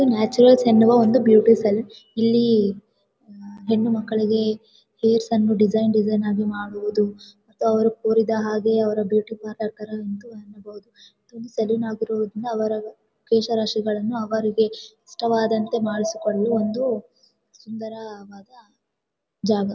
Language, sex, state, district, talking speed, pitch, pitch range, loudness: Kannada, female, Karnataka, Bellary, 90 wpm, 220 Hz, 215-225 Hz, -21 LUFS